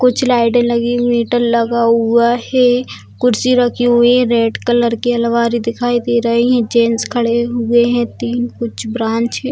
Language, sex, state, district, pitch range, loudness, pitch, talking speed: Hindi, female, Bihar, Purnia, 235-245 Hz, -14 LUFS, 235 Hz, 175 wpm